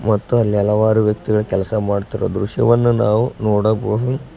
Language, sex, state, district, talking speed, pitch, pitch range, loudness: Kannada, male, Karnataka, Koppal, 125 wpm, 105 Hz, 105-115 Hz, -17 LUFS